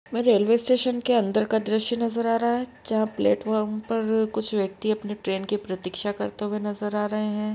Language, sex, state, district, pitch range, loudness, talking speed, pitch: Hindi, female, Uttar Pradesh, Etah, 210-230 Hz, -25 LUFS, 205 wpm, 215 Hz